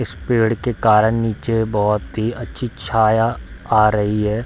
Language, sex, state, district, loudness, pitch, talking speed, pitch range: Hindi, male, Bihar, Darbhanga, -18 LUFS, 110 Hz, 160 wpm, 105-115 Hz